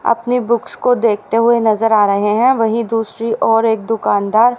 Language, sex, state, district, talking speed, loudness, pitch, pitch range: Hindi, female, Haryana, Rohtak, 195 wpm, -14 LUFS, 225 Hz, 220-235 Hz